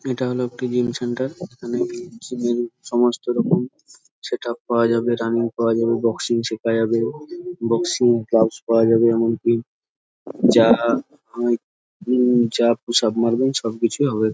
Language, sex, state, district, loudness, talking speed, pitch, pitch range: Bengali, male, West Bengal, Jhargram, -20 LUFS, 140 wpm, 120 Hz, 115-120 Hz